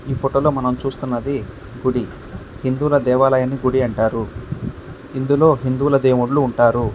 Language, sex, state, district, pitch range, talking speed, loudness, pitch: Telugu, male, Andhra Pradesh, Krishna, 120-135 Hz, 120 wpm, -18 LUFS, 130 Hz